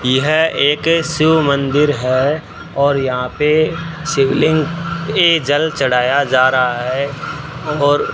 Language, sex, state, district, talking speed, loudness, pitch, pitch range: Hindi, male, Rajasthan, Bikaner, 125 wpm, -15 LUFS, 145 Hz, 135-155 Hz